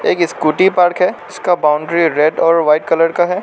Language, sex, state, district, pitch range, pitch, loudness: Hindi, male, Arunachal Pradesh, Lower Dibang Valley, 155-180 Hz, 165 Hz, -14 LUFS